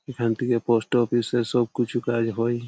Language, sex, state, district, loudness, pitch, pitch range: Bengali, male, West Bengal, Malda, -24 LUFS, 120 Hz, 115-120 Hz